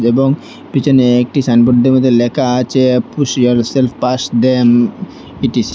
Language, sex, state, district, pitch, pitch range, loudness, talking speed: Bengali, male, Assam, Hailakandi, 125 Hz, 120-130 Hz, -12 LUFS, 135 wpm